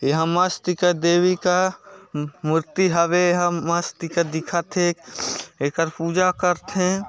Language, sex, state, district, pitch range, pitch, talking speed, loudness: Chhattisgarhi, male, Chhattisgarh, Sarguja, 165-180 Hz, 175 Hz, 120 wpm, -21 LUFS